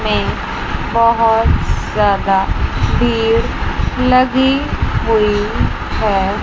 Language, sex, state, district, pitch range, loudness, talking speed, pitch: Hindi, female, Chandigarh, Chandigarh, 205-235 Hz, -15 LUFS, 65 wpm, 225 Hz